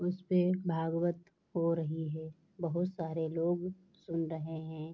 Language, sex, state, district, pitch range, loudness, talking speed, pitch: Hindi, female, Bihar, Bhagalpur, 160-180 Hz, -35 LUFS, 135 wpm, 165 Hz